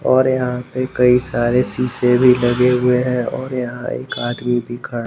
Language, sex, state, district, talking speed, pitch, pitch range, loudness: Hindi, male, Jharkhand, Garhwa, 190 wpm, 125 Hz, 120-125 Hz, -17 LUFS